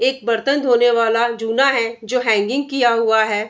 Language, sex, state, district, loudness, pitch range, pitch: Hindi, female, Bihar, Araria, -17 LUFS, 225-255 Hz, 235 Hz